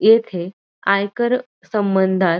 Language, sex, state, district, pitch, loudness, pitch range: Marathi, female, Maharashtra, Dhule, 200 Hz, -19 LUFS, 190-225 Hz